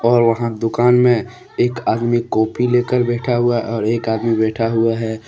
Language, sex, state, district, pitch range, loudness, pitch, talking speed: Hindi, male, Jharkhand, Deoghar, 115-120 Hz, -17 LUFS, 115 Hz, 195 wpm